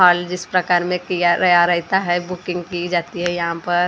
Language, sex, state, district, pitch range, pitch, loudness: Hindi, female, Maharashtra, Gondia, 175-180 Hz, 175 Hz, -18 LUFS